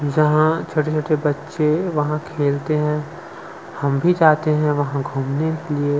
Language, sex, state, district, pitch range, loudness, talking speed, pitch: Hindi, male, Chhattisgarh, Sukma, 145-155 Hz, -19 LUFS, 140 wpm, 150 Hz